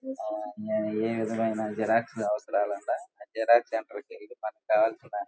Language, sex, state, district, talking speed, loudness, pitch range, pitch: Telugu, male, Andhra Pradesh, Guntur, 135 wpm, -29 LUFS, 105-120 Hz, 115 Hz